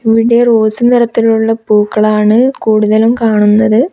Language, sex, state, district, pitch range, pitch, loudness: Malayalam, female, Kerala, Kasaragod, 215-235 Hz, 225 Hz, -10 LUFS